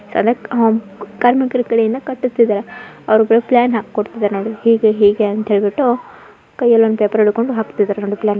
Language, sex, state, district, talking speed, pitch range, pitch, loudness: Kannada, female, Karnataka, Bijapur, 130 wpm, 210-240 Hz, 225 Hz, -15 LUFS